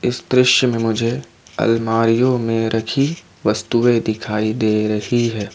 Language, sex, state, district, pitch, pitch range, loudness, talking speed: Hindi, male, Jharkhand, Ranchi, 115 Hz, 110-120 Hz, -18 LUFS, 130 wpm